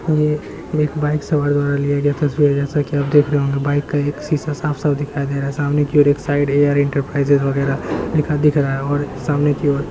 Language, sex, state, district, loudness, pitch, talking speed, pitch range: Hindi, male, Bihar, Muzaffarpur, -18 LUFS, 145 Hz, 250 wpm, 140-150 Hz